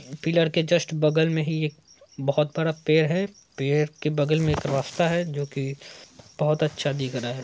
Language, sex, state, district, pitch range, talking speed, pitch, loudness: Hindi, male, Bihar, Saran, 145-160 Hz, 200 wpm, 150 Hz, -25 LUFS